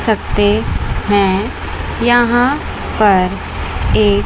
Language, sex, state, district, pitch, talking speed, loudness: Hindi, female, Chandigarh, Chandigarh, 195 Hz, 70 wpm, -15 LUFS